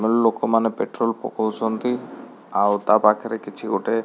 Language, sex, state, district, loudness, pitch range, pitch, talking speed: Odia, male, Odisha, Khordha, -22 LUFS, 110-115 Hz, 115 Hz, 120 wpm